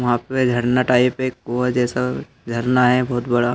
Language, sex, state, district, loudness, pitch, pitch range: Hindi, male, Madhya Pradesh, Dhar, -19 LUFS, 125 Hz, 120-125 Hz